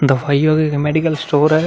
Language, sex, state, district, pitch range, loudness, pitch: Hindi, male, Bihar, Vaishali, 145-155 Hz, -15 LUFS, 150 Hz